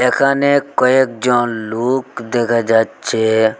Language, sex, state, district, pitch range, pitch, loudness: Bengali, male, Assam, Hailakandi, 115-130 Hz, 120 Hz, -15 LUFS